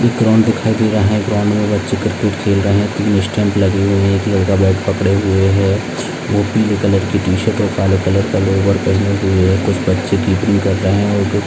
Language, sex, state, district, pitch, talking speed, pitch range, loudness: Hindi, male, Maharashtra, Aurangabad, 100 Hz, 225 wpm, 95-105 Hz, -14 LUFS